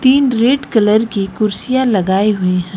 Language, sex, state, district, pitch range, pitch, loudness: Hindi, female, Uttar Pradesh, Lucknow, 195-255 Hz, 215 Hz, -14 LUFS